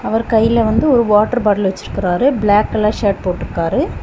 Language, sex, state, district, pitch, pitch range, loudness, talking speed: Tamil, female, Tamil Nadu, Kanyakumari, 215 Hz, 205-230 Hz, -15 LUFS, 180 wpm